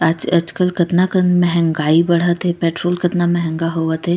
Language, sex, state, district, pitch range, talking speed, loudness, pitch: Chhattisgarhi, female, Chhattisgarh, Raigarh, 165-175 Hz, 185 wpm, -16 LUFS, 175 Hz